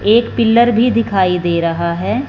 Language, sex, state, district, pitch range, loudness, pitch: Hindi, female, Punjab, Fazilka, 175-235 Hz, -14 LUFS, 210 Hz